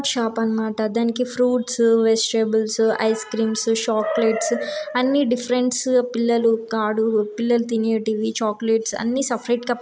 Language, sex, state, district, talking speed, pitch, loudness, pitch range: Telugu, female, Telangana, Karimnagar, 105 wpm, 225 Hz, -20 LUFS, 220-245 Hz